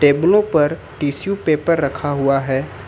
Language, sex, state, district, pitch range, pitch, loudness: Hindi, male, Jharkhand, Ranchi, 140-160 Hz, 145 Hz, -18 LUFS